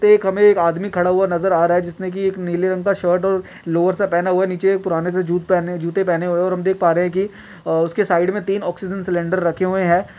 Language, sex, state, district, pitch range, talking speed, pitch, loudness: Hindi, male, Chhattisgarh, Kabirdham, 175-190 Hz, 285 wpm, 185 Hz, -18 LUFS